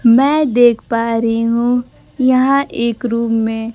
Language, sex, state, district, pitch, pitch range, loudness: Hindi, female, Bihar, Kaimur, 235 Hz, 230-255 Hz, -14 LUFS